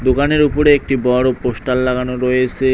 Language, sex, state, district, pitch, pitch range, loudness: Bengali, male, West Bengal, Cooch Behar, 130 Hz, 125-135 Hz, -15 LUFS